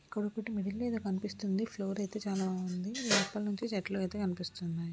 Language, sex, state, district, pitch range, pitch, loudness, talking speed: Telugu, female, Telangana, Karimnagar, 190-210 Hz, 200 Hz, -35 LUFS, 160 wpm